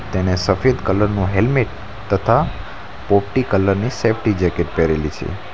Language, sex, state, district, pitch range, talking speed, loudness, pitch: Gujarati, male, Gujarat, Valsad, 95-110 Hz, 140 wpm, -18 LUFS, 100 Hz